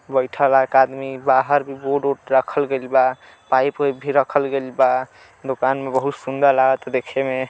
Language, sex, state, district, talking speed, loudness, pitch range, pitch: Bhojpuri, male, Uttar Pradesh, Deoria, 190 wpm, -19 LUFS, 130-140 Hz, 135 Hz